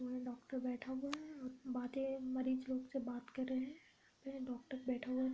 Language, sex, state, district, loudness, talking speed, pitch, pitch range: Hindi, female, Uttar Pradesh, Gorakhpur, -44 LUFS, 190 wpm, 260 Hz, 255-265 Hz